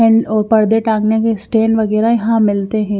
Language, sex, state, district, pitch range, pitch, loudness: Hindi, female, Haryana, Jhajjar, 215-225 Hz, 220 Hz, -14 LUFS